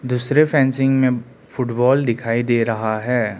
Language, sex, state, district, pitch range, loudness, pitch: Hindi, male, Arunachal Pradesh, Lower Dibang Valley, 115-130 Hz, -18 LUFS, 125 Hz